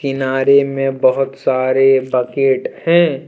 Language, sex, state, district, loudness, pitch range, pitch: Hindi, male, Jharkhand, Deoghar, -15 LUFS, 130-135 Hz, 135 Hz